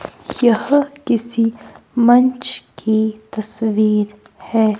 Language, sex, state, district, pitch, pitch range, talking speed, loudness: Hindi, female, Himachal Pradesh, Shimla, 225 Hz, 215-245 Hz, 75 wpm, -17 LUFS